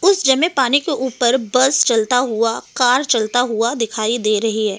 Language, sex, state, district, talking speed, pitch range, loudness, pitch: Hindi, female, Delhi, New Delhi, 185 wpm, 225-265 Hz, -16 LUFS, 245 Hz